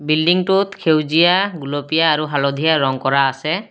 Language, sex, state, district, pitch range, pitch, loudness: Assamese, male, Assam, Kamrup Metropolitan, 145-175 Hz, 155 Hz, -16 LUFS